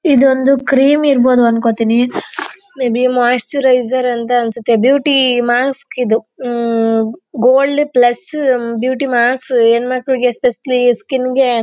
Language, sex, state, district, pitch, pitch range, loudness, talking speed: Kannada, female, Karnataka, Chamarajanagar, 250 Hz, 240-265 Hz, -13 LUFS, 105 wpm